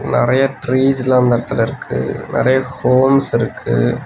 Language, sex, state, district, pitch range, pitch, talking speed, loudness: Tamil, male, Tamil Nadu, Nilgiris, 120-135 Hz, 130 Hz, 120 wpm, -15 LUFS